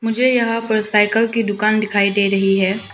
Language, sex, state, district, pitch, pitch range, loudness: Hindi, female, Arunachal Pradesh, Lower Dibang Valley, 215 Hz, 200-230 Hz, -16 LUFS